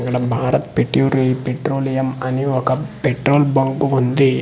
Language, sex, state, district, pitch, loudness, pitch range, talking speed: Telugu, male, Andhra Pradesh, Manyam, 130 Hz, -18 LUFS, 125-135 Hz, 135 wpm